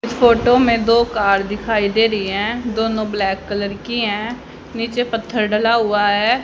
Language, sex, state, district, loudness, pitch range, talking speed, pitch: Hindi, female, Haryana, Jhajjar, -17 LUFS, 205-235 Hz, 175 wpm, 225 Hz